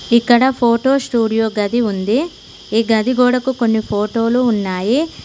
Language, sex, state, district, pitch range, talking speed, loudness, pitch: Telugu, female, Telangana, Mahabubabad, 220-250 Hz, 125 wpm, -16 LUFS, 235 Hz